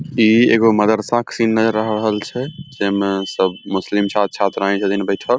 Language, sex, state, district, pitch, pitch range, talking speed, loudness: Maithili, male, Bihar, Samastipur, 105 Hz, 100-115 Hz, 180 wpm, -17 LUFS